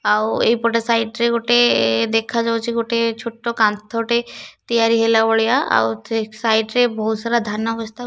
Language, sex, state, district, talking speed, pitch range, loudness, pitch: Odia, female, Odisha, Nuapada, 165 wpm, 220-235 Hz, -18 LUFS, 230 Hz